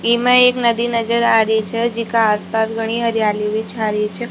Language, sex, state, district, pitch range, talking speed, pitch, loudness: Rajasthani, female, Rajasthan, Nagaur, 220-235 Hz, 225 wpm, 230 Hz, -16 LUFS